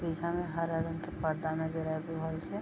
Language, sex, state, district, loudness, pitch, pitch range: Maithili, female, Bihar, Vaishali, -35 LUFS, 165 Hz, 160-165 Hz